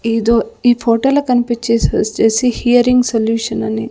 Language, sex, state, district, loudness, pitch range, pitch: Telugu, female, Andhra Pradesh, Sri Satya Sai, -14 LUFS, 225-245 Hz, 235 Hz